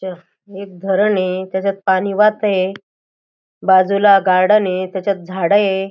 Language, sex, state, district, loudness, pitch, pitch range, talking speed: Marathi, female, Maharashtra, Aurangabad, -15 LUFS, 190 Hz, 185-200 Hz, 120 wpm